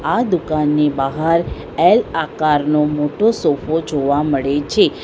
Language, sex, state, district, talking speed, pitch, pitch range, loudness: Gujarati, female, Gujarat, Valsad, 120 wpm, 150 Hz, 145-160 Hz, -17 LUFS